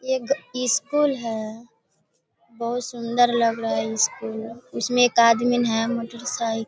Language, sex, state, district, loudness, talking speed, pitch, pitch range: Hindi, female, Bihar, Sitamarhi, -22 LUFS, 160 wpm, 235 Hz, 225-245 Hz